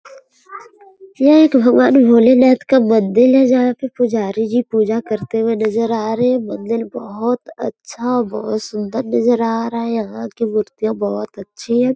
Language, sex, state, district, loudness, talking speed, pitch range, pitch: Hindi, female, Uttar Pradesh, Gorakhpur, -15 LUFS, 165 wpm, 220-255 Hz, 230 Hz